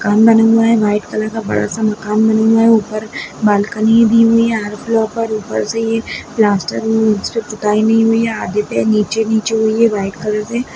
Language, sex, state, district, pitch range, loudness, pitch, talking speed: Hindi, male, Bihar, Gaya, 210-225 Hz, -14 LUFS, 220 Hz, 185 wpm